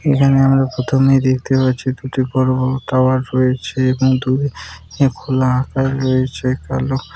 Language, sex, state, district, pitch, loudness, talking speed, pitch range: Bengali, male, West Bengal, Malda, 130 Hz, -16 LUFS, 135 wpm, 130-135 Hz